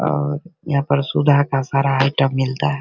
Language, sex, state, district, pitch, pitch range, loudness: Hindi, male, Bihar, Begusarai, 135 Hz, 130-140 Hz, -18 LUFS